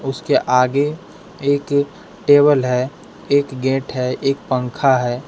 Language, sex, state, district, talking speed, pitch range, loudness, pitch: Hindi, male, Jharkhand, Deoghar, 125 wpm, 125-145 Hz, -18 LUFS, 135 Hz